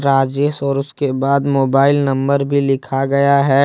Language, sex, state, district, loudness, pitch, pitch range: Hindi, male, Jharkhand, Deoghar, -16 LUFS, 140 Hz, 135-140 Hz